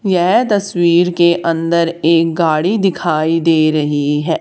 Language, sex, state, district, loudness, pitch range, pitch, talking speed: Hindi, male, Haryana, Charkhi Dadri, -14 LUFS, 160-175 Hz, 165 Hz, 135 wpm